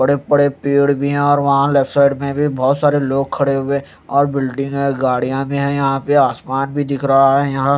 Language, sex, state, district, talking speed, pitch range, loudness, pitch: Hindi, male, Chandigarh, Chandigarh, 230 wpm, 135-140 Hz, -16 LUFS, 140 Hz